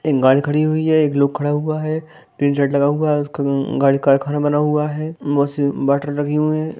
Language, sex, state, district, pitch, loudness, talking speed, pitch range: Hindi, female, Bihar, Darbhanga, 145 Hz, -18 LUFS, 245 wpm, 140-155 Hz